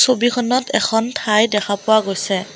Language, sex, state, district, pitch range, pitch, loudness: Assamese, female, Assam, Kamrup Metropolitan, 205-245 Hz, 220 Hz, -17 LUFS